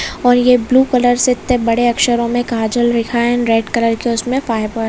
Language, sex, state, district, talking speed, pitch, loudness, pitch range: Hindi, female, Maharashtra, Pune, 235 wpm, 240 Hz, -14 LUFS, 230-245 Hz